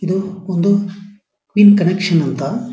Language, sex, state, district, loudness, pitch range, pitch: Kannada, male, Karnataka, Dharwad, -15 LUFS, 185-205 Hz, 195 Hz